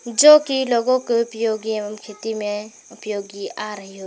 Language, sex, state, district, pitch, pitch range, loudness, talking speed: Hindi, female, Jharkhand, Garhwa, 220 Hz, 210-235 Hz, -19 LUFS, 175 wpm